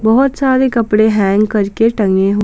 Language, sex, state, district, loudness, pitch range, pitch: Hindi, female, Jharkhand, Palamu, -13 LUFS, 205-235 Hz, 220 Hz